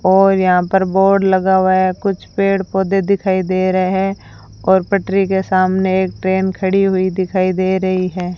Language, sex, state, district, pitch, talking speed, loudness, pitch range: Hindi, female, Rajasthan, Bikaner, 190 Hz, 185 wpm, -15 LUFS, 185-195 Hz